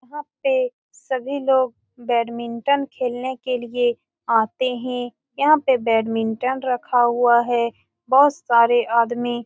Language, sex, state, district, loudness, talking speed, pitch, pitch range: Hindi, female, Bihar, Saran, -20 LUFS, 125 wpm, 245 Hz, 235-265 Hz